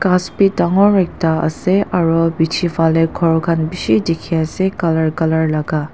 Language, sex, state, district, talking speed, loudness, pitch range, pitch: Nagamese, female, Nagaland, Dimapur, 160 wpm, -16 LUFS, 160-180 Hz, 165 Hz